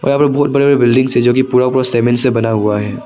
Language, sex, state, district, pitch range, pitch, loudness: Hindi, male, Arunachal Pradesh, Papum Pare, 120-135 Hz, 125 Hz, -12 LUFS